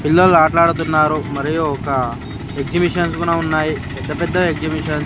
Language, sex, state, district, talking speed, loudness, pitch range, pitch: Telugu, male, Andhra Pradesh, Sri Satya Sai, 130 wpm, -17 LUFS, 140-170 Hz, 155 Hz